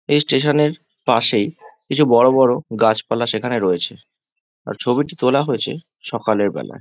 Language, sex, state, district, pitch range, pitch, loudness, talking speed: Bengali, male, West Bengal, Jhargram, 115-150 Hz, 130 Hz, -18 LUFS, 130 wpm